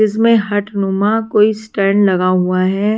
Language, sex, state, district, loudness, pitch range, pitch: Hindi, female, Maharashtra, Washim, -14 LUFS, 195-215 Hz, 205 Hz